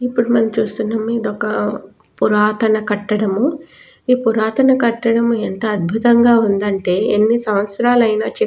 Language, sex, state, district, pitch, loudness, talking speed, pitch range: Telugu, female, Telangana, Nalgonda, 220 Hz, -16 LUFS, 120 wpm, 210-235 Hz